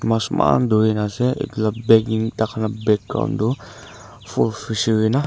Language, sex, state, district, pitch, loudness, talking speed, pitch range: Nagamese, male, Nagaland, Dimapur, 110 Hz, -20 LUFS, 170 wpm, 110-115 Hz